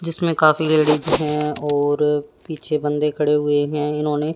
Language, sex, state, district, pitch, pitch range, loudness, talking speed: Hindi, female, Haryana, Jhajjar, 150 Hz, 150-155 Hz, -19 LUFS, 150 wpm